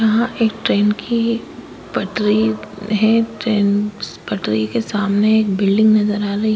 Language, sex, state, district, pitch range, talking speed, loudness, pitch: Hindi, female, Maharashtra, Chandrapur, 200-220 Hz, 135 wpm, -17 LUFS, 210 Hz